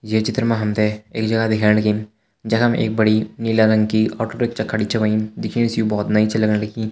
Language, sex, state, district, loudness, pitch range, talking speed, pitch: Hindi, male, Uttarakhand, Uttarkashi, -19 LUFS, 105-115 Hz, 235 wpm, 110 Hz